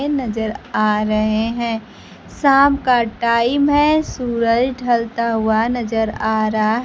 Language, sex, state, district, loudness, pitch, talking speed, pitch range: Hindi, female, Bihar, Kaimur, -17 LUFS, 235 Hz, 140 wpm, 220-250 Hz